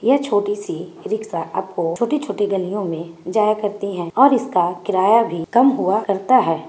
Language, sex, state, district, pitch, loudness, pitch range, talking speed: Magahi, female, Bihar, Gaya, 205 Hz, -19 LUFS, 175-230 Hz, 190 wpm